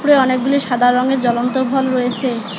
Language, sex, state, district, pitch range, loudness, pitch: Bengali, male, West Bengal, Alipurduar, 245-265 Hz, -16 LUFS, 255 Hz